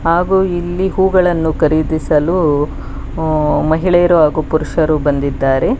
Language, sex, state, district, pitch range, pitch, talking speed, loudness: Kannada, female, Karnataka, Bangalore, 150-175 Hz, 160 Hz, 95 wpm, -14 LUFS